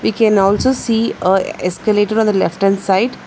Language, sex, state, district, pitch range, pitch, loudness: English, female, Telangana, Hyderabad, 195-225 Hz, 210 Hz, -15 LUFS